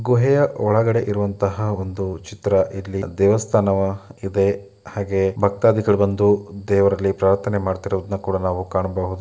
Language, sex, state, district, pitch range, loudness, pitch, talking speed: Kannada, male, Karnataka, Dakshina Kannada, 95-105 Hz, -20 LUFS, 100 Hz, 100 wpm